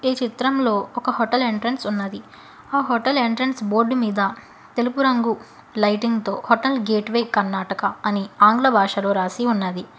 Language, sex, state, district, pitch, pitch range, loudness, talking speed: Telugu, female, Telangana, Hyderabad, 230 Hz, 205-245 Hz, -21 LUFS, 140 wpm